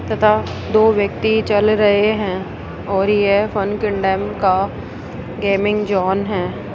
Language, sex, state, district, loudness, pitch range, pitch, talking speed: Hindi, female, Rajasthan, Jaipur, -17 LUFS, 195-210 Hz, 205 Hz, 135 wpm